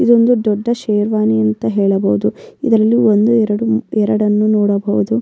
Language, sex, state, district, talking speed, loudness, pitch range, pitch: Kannada, female, Karnataka, Mysore, 125 wpm, -14 LUFS, 200-225 Hz, 210 Hz